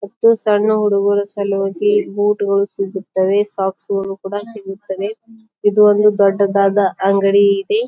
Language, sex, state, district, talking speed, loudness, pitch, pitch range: Kannada, female, Karnataka, Bijapur, 120 wpm, -16 LUFS, 200 Hz, 195-210 Hz